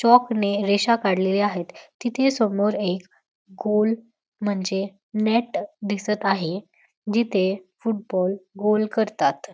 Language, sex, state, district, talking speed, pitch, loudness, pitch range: Marathi, female, Maharashtra, Dhule, 105 wpm, 205 Hz, -23 LUFS, 195-225 Hz